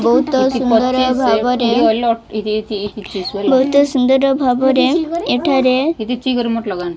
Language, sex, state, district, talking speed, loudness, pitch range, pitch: Odia, female, Odisha, Malkangiri, 60 wpm, -15 LUFS, 225-265 Hz, 250 Hz